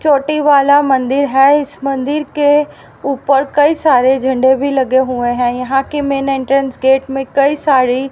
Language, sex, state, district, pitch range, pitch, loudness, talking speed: Hindi, female, Haryana, Rohtak, 265-285 Hz, 275 Hz, -13 LUFS, 170 wpm